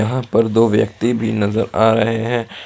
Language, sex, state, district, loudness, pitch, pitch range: Hindi, male, Jharkhand, Ranchi, -17 LUFS, 115 Hz, 110-115 Hz